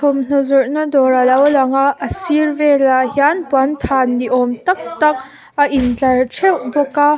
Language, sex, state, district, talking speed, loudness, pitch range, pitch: Mizo, female, Mizoram, Aizawl, 165 wpm, -14 LUFS, 260-295 Hz, 275 Hz